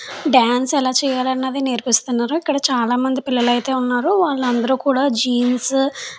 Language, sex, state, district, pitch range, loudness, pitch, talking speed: Telugu, female, Andhra Pradesh, Chittoor, 245-275 Hz, -18 LUFS, 260 Hz, 125 wpm